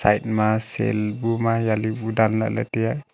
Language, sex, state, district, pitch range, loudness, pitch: Wancho, male, Arunachal Pradesh, Longding, 110-115 Hz, -22 LUFS, 110 Hz